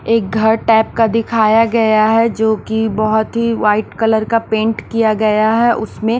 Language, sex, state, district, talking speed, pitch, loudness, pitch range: Hindi, female, Maharashtra, Washim, 175 wpm, 220 Hz, -14 LUFS, 220-230 Hz